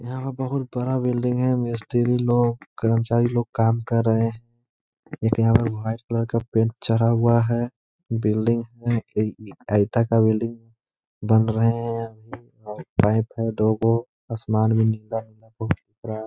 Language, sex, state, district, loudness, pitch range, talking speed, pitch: Hindi, male, Bihar, Gaya, -23 LUFS, 110-120 Hz, 160 wpm, 115 Hz